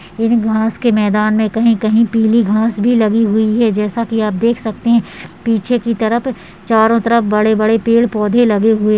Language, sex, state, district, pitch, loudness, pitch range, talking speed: Hindi, female, Uttarakhand, Tehri Garhwal, 225 Hz, -14 LUFS, 215-230 Hz, 185 wpm